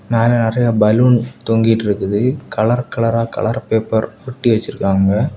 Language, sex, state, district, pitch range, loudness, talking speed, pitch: Tamil, male, Tamil Nadu, Kanyakumari, 110-120 Hz, -16 LUFS, 125 wpm, 115 Hz